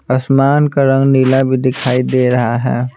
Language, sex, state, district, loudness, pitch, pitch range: Hindi, male, Bihar, Patna, -13 LUFS, 130 Hz, 125-135 Hz